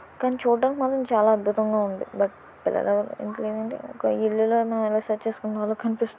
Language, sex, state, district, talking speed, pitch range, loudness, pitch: Telugu, female, Andhra Pradesh, Visakhapatnam, 80 wpm, 215-230 Hz, -25 LUFS, 220 Hz